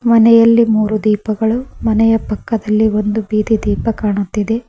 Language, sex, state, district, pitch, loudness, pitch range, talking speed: Kannada, female, Karnataka, Koppal, 220 Hz, -14 LUFS, 210-225 Hz, 115 wpm